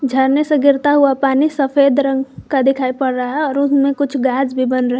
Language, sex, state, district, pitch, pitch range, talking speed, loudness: Hindi, female, Jharkhand, Garhwa, 275 Hz, 265-285 Hz, 230 wpm, -15 LUFS